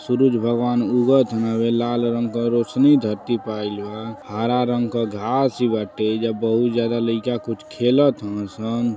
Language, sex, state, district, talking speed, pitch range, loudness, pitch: Hindi, male, Uttar Pradesh, Deoria, 175 wpm, 110-120 Hz, -20 LUFS, 115 Hz